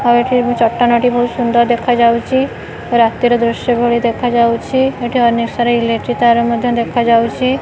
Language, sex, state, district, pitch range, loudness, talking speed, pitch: Odia, female, Odisha, Khordha, 235-245 Hz, -13 LUFS, 160 wpm, 240 Hz